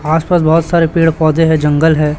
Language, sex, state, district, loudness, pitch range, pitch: Hindi, male, Chhattisgarh, Raipur, -11 LUFS, 155-165 Hz, 160 Hz